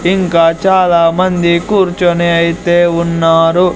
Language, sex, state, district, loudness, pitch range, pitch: Telugu, male, Andhra Pradesh, Sri Satya Sai, -11 LUFS, 170-180 Hz, 175 Hz